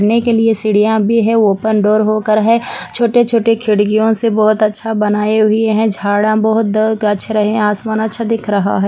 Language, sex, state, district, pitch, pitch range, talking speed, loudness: Hindi, female, Andhra Pradesh, Anantapur, 215 Hz, 210-225 Hz, 210 wpm, -13 LUFS